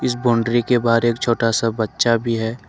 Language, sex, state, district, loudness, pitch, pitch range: Hindi, male, Jharkhand, Ranchi, -18 LUFS, 115 Hz, 115-120 Hz